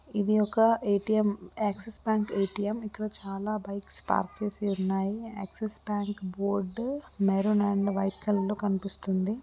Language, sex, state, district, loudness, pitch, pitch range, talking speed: Telugu, female, Andhra Pradesh, Guntur, -30 LUFS, 205 Hz, 195-215 Hz, 140 wpm